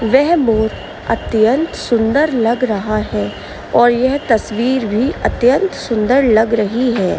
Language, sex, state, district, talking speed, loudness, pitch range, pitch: Hindi, female, Uttar Pradesh, Varanasi, 135 wpm, -15 LUFS, 220-260 Hz, 235 Hz